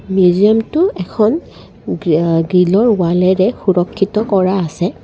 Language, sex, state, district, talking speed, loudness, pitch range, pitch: Assamese, female, Assam, Kamrup Metropolitan, 105 wpm, -14 LUFS, 180-215 Hz, 190 Hz